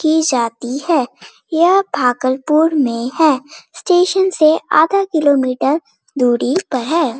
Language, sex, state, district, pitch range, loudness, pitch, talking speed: Hindi, female, Bihar, Bhagalpur, 255-325 Hz, -15 LUFS, 300 Hz, 125 wpm